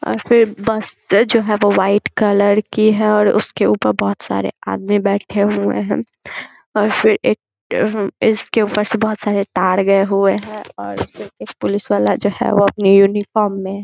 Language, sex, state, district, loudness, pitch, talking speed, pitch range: Hindi, female, Bihar, Muzaffarpur, -16 LUFS, 205 Hz, 190 wpm, 195-215 Hz